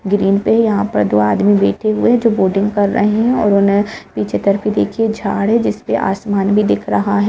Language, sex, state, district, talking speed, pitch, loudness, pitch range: Hindi, female, Jharkhand, Jamtara, 220 wpm, 205 Hz, -14 LUFS, 195-215 Hz